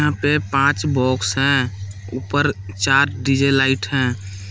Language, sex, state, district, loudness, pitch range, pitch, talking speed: Hindi, male, Jharkhand, Palamu, -18 LUFS, 100-140 Hz, 135 Hz, 120 wpm